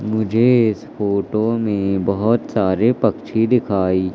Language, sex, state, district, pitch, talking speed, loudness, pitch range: Hindi, male, Madhya Pradesh, Katni, 110 Hz, 115 wpm, -18 LUFS, 100-115 Hz